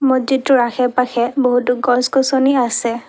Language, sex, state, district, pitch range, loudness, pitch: Assamese, female, Assam, Kamrup Metropolitan, 245-265 Hz, -15 LUFS, 250 Hz